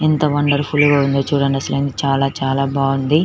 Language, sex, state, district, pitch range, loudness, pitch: Telugu, female, Telangana, Nalgonda, 135-145 Hz, -17 LUFS, 140 Hz